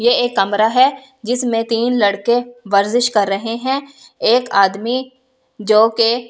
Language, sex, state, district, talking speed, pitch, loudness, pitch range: Hindi, female, Delhi, New Delhi, 125 wpm, 235 Hz, -16 LUFS, 215-250 Hz